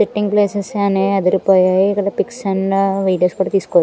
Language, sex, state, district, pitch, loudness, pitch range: Telugu, female, Andhra Pradesh, Annamaya, 195 Hz, -16 LUFS, 190-200 Hz